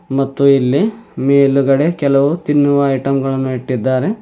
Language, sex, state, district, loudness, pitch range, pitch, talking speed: Kannada, male, Karnataka, Bidar, -14 LUFS, 135-145 Hz, 140 Hz, 115 wpm